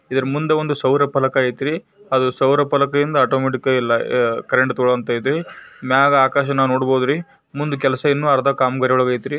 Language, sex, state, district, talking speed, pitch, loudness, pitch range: Kannada, male, Karnataka, Bijapur, 155 wpm, 135 Hz, -18 LUFS, 130-145 Hz